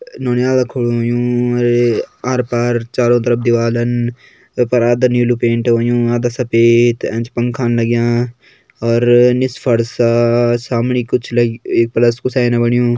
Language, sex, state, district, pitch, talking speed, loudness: Kumaoni, male, Uttarakhand, Tehri Garhwal, 120 Hz, 140 wpm, -15 LUFS